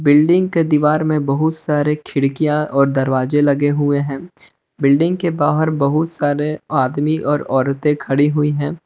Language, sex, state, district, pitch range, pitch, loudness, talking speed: Hindi, male, Jharkhand, Palamu, 140-155 Hz, 150 Hz, -17 LUFS, 155 wpm